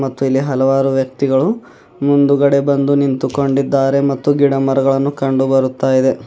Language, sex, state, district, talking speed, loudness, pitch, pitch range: Kannada, male, Karnataka, Bidar, 125 wpm, -15 LUFS, 135 Hz, 135-140 Hz